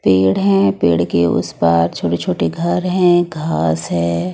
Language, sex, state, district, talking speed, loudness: Hindi, female, Odisha, Nuapada, 165 wpm, -16 LUFS